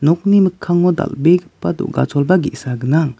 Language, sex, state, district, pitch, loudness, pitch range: Garo, male, Meghalaya, West Garo Hills, 160 Hz, -16 LUFS, 140-180 Hz